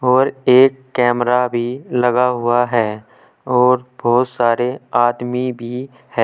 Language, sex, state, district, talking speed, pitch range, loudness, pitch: Hindi, male, Uttar Pradesh, Saharanpur, 125 wpm, 120-125 Hz, -16 LUFS, 125 Hz